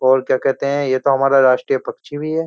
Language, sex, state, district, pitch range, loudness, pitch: Hindi, male, Uttar Pradesh, Jyotiba Phule Nagar, 130-140 Hz, -16 LUFS, 135 Hz